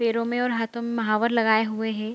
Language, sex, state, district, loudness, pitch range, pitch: Hindi, female, Bihar, Vaishali, -24 LUFS, 220-235 Hz, 230 Hz